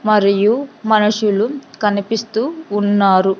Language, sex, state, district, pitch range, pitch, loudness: Telugu, female, Andhra Pradesh, Sri Satya Sai, 205-225 Hz, 215 Hz, -16 LUFS